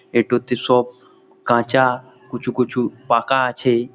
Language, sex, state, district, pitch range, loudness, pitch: Bengali, male, West Bengal, Malda, 120-125 Hz, -19 LUFS, 125 Hz